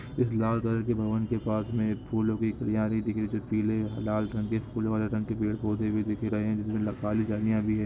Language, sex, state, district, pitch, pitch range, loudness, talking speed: Hindi, male, Jharkhand, Sahebganj, 110 Hz, 105-110 Hz, -29 LUFS, 260 wpm